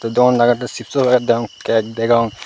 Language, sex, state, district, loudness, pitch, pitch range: Chakma, male, Tripura, Unakoti, -16 LUFS, 120 Hz, 115-125 Hz